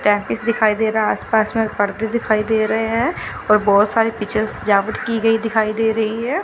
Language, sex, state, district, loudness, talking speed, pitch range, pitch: Hindi, female, Chandigarh, Chandigarh, -18 LUFS, 205 wpm, 210-225 Hz, 220 Hz